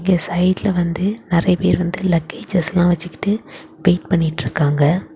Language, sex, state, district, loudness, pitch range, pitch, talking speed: Tamil, female, Tamil Nadu, Kanyakumari, -18 LUFS, 170-185 Hz, 175 Hz, 130 wpm